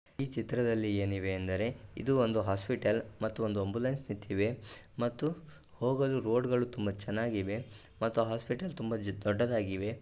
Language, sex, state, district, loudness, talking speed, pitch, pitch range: Kannada, male, Karnataka, Gulbarga, -34 LUFS, 120 wpm, 115 Hz, 105-125 Hz